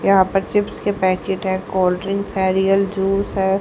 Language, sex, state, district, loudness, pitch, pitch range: Hindi, female, Haryana, Rohtak, -19 LUFS, 195 Hz, 190-195 Hz